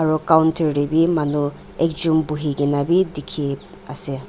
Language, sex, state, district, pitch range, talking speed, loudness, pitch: Nagamese, female, Nagaland, Dimapur, 145-160 Hz, 140 wpm, -18 LUFS, 150 Hz